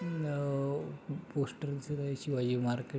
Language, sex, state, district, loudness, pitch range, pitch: Marathi, male, Maharashtra, Pune, -36 LUFS, 135-145 Hz, 140 Hz